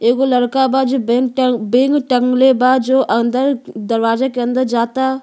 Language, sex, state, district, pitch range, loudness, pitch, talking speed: Bhojpuri, female, Uttar Pradesh, Gorakhpur, 240-265 Hz, -15 LUFS, 255 Hz, 170 wpm